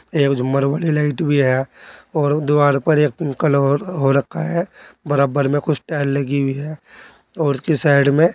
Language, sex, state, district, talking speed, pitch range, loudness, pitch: Hindi, male, Uttar Pradesh, Saharanpur, 195 wpm, 140-155 Hz, -18 LUFS, 145 Hz